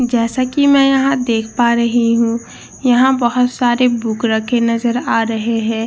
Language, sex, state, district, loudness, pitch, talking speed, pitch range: Hindi, female, Bihar, Katihar, -15 LUFS, 240 Hz, 175 wpm, 230-250 Hz